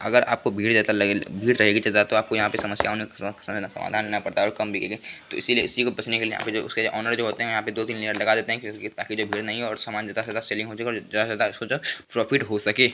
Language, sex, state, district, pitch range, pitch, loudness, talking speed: Hindi, male, Bihar, Begusarai, 105-115 Hz, 110 Hz, -24 LUFS, 195 wpm